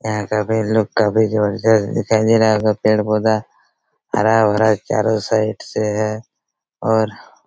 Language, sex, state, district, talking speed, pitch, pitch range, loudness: Hindi, male, Chhattisgarh, Raigarh, 135 wpm, 110 Hz, 105-110 Hz, -17 LUFS